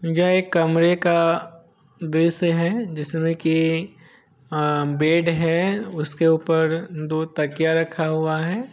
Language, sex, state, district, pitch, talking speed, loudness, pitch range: Hindi, male, Bihar, Sitamarhi, 165 Hz, 115 wpm, -21 LUFS, 160-170 Hz